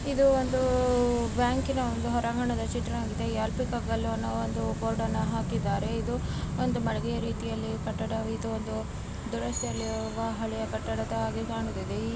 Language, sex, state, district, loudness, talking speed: Kannada, female, Karnataka, Bellary, -30 LUFS, 80 wpm